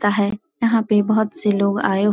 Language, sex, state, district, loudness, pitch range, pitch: Hindi, female, Uttar Pradesh, Etah, -19 LUFS, 205-215 Hz, 210 Hz